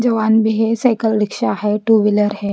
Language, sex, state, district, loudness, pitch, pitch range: Hindi, female, Chandigarh, Chandigarh, -16 LUFS, 220 Hz, 210-225 Hz